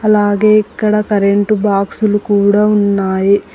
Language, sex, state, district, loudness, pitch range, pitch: Telugu, female, Telangana, Hyderabad, -12 LUFS, 200-210 Hz, 205 Hz